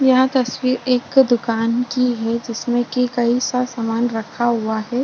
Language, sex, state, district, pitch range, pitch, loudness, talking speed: Hindi, female, Uttar Pradesh, Budaun, 230-250 Hz, 240 Hz, -19 LUFS, 155 wpm